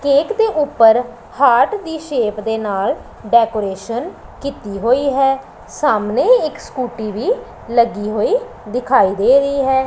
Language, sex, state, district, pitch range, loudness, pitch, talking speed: Punjabi, female, Punjab, Pathankot, 220-285 Hz, -16 LUFS, 250 Hz, 135 wpm